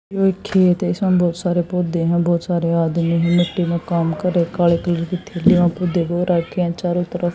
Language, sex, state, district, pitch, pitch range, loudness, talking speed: Hindi, female, Haryana, Jhajjar, 175 Hz, 170-180 Hz, -18 LUFS, 210 wpm